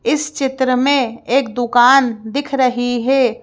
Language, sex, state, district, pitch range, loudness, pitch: Hindi, female, Madhya Pradesh, Bhopal, 245-270 Hz, -15 LUFS, 255 Hz